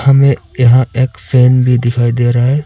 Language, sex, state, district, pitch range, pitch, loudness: Hindi, male, Arunachal Pradesh, Papum Pare, 120-130 Hz, 125 Hz, -11 LUFS